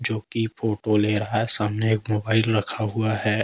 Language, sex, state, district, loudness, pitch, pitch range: Hindi, male, Jharkhand, Deoghar, -21 LUFS, 110 Hz, 105-110 Hz